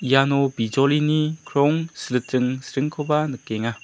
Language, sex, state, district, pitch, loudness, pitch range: Garo, male, Meghalaya, South Garo Hills, 140 Hz, -22 LUFS, 125-150 Hz